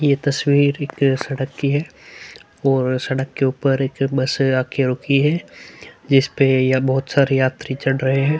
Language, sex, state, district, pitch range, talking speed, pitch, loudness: Hindi, male, Uttar Pradesh, Hamirpur, 130-140 Hz, 165 wpm, 135 Hz, -19 LUFS